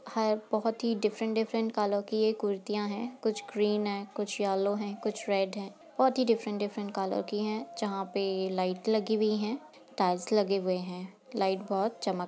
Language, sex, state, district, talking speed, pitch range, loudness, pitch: Hindi, female, Uttar Pradesh, Jalaun, 195 wpm, 195-220 Hz, -31 LUFS, 210 Hz